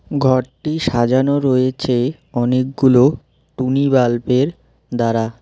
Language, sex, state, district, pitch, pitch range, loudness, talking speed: Bengali, male, West Bengal, Alipurduar, 130 Hz, 125-140 Hz, -17 LUFS, 80 wpm